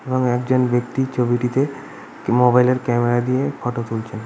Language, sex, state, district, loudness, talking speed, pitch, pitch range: Bengali, male, West Bengal, Purulia, -19 LUFS, 140 wpm, 125 Hz, 120-130 Hz